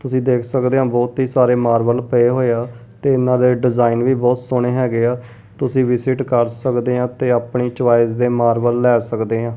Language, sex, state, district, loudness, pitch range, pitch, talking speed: Punjabi, male, Punjab, Kapurthala, -16 LUFS, 120-125 Hz, 125 Hz, 205 wpm